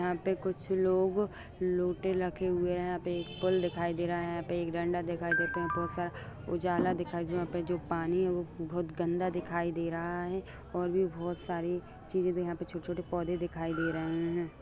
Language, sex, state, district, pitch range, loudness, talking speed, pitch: Hindi, male, Bihar, Begusarai, 170-180 Hz, -33 LUFS, 220 wpm, 175 Hz